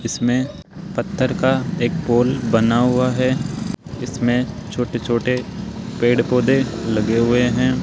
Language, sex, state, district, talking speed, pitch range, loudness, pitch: Hindi, male, Rajasthan, Jaipur, 125 wpm, 115-130 Hz, -19 LUFS, 125 Hz